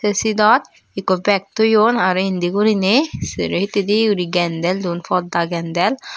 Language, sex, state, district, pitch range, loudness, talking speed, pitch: Chakma, female, Tripura, Dhalai, 180-215 Hz, -17 LUFS, 135 wpm, 195 Hz